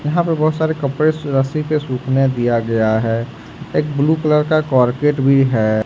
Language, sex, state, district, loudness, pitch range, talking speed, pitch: Hindi, male, Jharkhand, Ranchi, -16 LUFS, 120-155 Hz, 195 wpm, 135 Hz